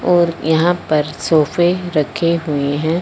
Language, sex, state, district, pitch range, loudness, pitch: Hindi, male, Punjab, Fazilka, 150-175 Hz, -16 LUFS, 165 Hz